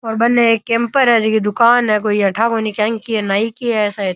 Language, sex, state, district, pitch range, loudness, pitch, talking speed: Rajasthani, male, Rajasthan, Nagaur, 210-235 Hz, -15 LUFS, 225 Hz, 230 wpm